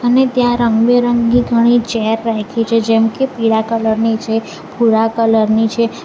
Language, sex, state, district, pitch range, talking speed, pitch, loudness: Gujarati, female, Gujarat, Valsad, 225-240 Hz, 160 wpm, 230 Hz, -14 LUFS